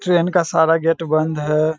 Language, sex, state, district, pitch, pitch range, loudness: Hindi, male, Bihar, Saharsa, 165 Hz, 155-170 Hz, -17 LUFS